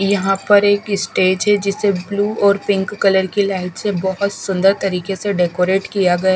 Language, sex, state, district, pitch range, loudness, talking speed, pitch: Hindi, female, Haryana, Charkhi Dadri, 190-200 Hz, -16 LUFS, 190 wpm, 195 Hz